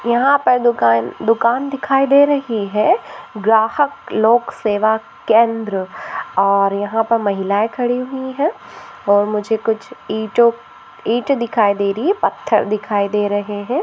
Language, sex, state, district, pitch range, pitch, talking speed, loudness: Hindi, female, Maharashtra, Nagpur, 205-255 Hz, 225 Hz, 140 wpm, -17 LUFS